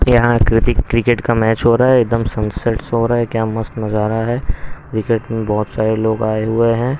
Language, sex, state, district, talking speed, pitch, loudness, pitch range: Hindi, male, Haryana, Rohtak, 215 wpm, 115 Hz, -16 LUFS, 110-120 Hz